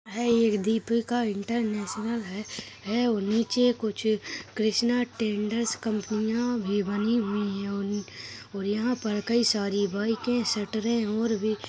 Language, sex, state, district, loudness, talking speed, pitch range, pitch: Hindi, female, Rajasthan, Churu, -27 LUFS, 125 wpm, 205-230 Hz, 220 Hz